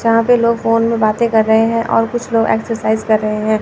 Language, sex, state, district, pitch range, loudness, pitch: Hindi, female, Chandigarh, Chandigarh, 220-230 Hz, -14 LUFS, 225 Hz